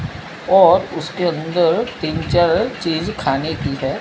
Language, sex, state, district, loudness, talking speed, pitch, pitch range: Hindi, male, Gujarat, Gandhinagar, -17 LUFS, 135 wpm, 160 Hz, 150-170 Hz